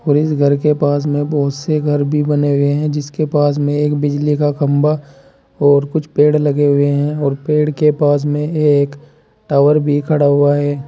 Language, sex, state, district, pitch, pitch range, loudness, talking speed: Hindi, male, Uttar Pradesh, Saharanpur, 145 Hz, 145-150 Hz, -15 LUFS, 205 wpm